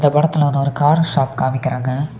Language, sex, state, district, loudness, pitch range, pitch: Tamil, male, Tamil Nadu, Kanyakumari, -17 LUFS, 130-150 Hz, 145 Hz